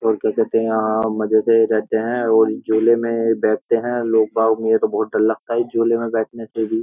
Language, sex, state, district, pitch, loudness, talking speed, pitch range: Hindi, male, Uttar Pradesh, Jyotiba Phule Nagar, 115 Hz, -18 LUFS, 235 wpm, 110-115 Hz